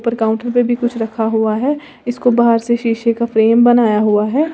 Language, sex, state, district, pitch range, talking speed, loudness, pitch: Hindi, female, Uttar Pradesh, Lalitpur, 220-240 Hz, 225 wpm, -14 LUFS, 235 Hz